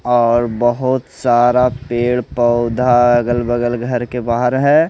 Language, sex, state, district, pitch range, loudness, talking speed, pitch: Hindi, male, Odisha, Malkangiri, 120-125 Hz, -15 LUFS, 135 wpm, 120 Hz